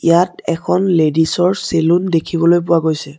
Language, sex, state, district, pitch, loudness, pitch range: Assamese, male, Assam, Sonitpur, 170 Hz, -15 LUFS, 160-175 Hz